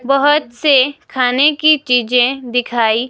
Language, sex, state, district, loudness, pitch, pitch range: Hindi, female, Himachal Pradesh, Shimla, -14 LUFS, 260 Hz, 245-285 Hz